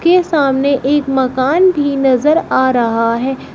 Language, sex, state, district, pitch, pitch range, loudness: Hindi, female, Uttar Pradesh, Shamli, 270 Hz, 260-300 Hz, -13 LUFS